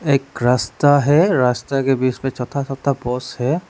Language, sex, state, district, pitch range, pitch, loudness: Hindi, male, Arunachal Pradesh, Lower Dibang Valley, 125-145 Hz, 135 Hz, -18 LUFS